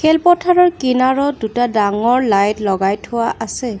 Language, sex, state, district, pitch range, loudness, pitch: Assamese, female, Assam, Kamrup Metropolitan, 210-285 Hz, -15 LUFS, 245 Hz